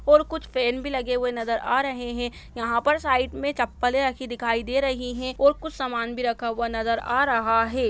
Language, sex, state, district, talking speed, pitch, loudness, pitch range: Hindi, female, Uttar Pradesh, Jyotiba Phule Nagar, 230 wpm, 250 Hz, -24 LUFS, 235-270 Hz